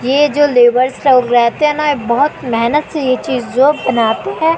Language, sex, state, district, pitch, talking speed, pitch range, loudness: Hindi, female, Madhya Pradesh, Katni, 260 Hz, 210 wpm, 240-295 Hz, -13 LUFS